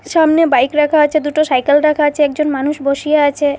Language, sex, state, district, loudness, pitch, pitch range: Bengali, female, Assam, Hailakandi, -13 LUFS, 295 Hz, 285-305 Hz